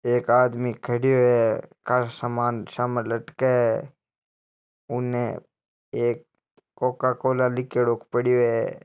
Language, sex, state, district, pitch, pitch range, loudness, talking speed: Marwari, male, Rajasthan, Nagaur, 120 Hz, 120-125 Hz, -24 LUFS, 95 wpm